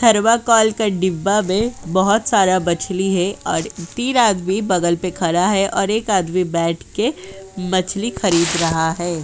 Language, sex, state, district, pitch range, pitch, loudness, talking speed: Hindi, female, Uttar Pradesh, Jyotiba Phule Nagar, 175-210 Hz, 190 Hz, -18 LUFS, 150 wpm